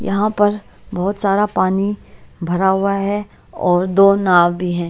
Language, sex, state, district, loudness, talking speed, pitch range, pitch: Hindi, female, Bihar, Patna, -16 LUFS, 160 wpm, 180-205 Hz, 195 Hz